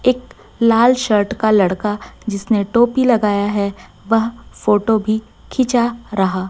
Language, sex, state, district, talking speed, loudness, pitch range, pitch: Hindi, female, Chhattisgarh, Raipur, 130 wpm, -17 LUFS, 205-235 Hz, 220 Hz